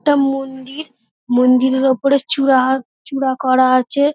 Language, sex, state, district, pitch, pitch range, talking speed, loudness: Bengali, female, West Bengal, Dakshin Dinajpur, 265 Hz, 255-275 Hz, 145 wpm, -15 LUFS